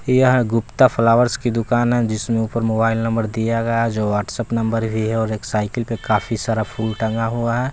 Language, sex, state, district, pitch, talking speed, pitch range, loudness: Hindi, male, Bihar, West Champaran, 115 Hz, 210 wpm, 110-120 Hz, -19 LUFS